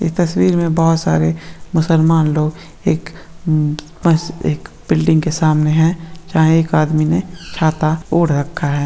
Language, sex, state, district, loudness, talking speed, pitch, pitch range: Marwari, female, Rajasthan, Nagaur, -16 LUFS, 135 wpm, 160 Hz, 155-165 Hz